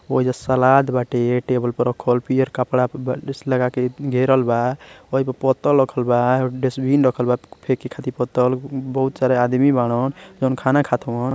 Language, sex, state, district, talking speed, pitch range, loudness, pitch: Hindi, male, Uttar Pradesh, Ghazipur, 165 wpm, 125-135 Hz, -19 LUFS, 130 Hz